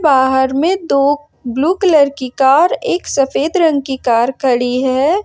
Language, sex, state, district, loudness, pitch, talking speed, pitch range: Hindi, female, Jharkhand, Ranchi, -14 LUFS, 275 Hz, 160 wpm, 260-310 Hz